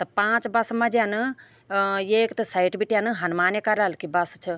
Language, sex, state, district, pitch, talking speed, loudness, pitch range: Garhwali, female, Uttarakhand, Tehri Garhwal, 210 Hz, 195 wpm, -23 LUFS, 180-225 Hz